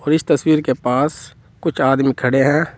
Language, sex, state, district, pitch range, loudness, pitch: Hindi, male, Uttar Pradesh, Saharanpur, 130-155 Hz, -17 LUFS, 135 Hz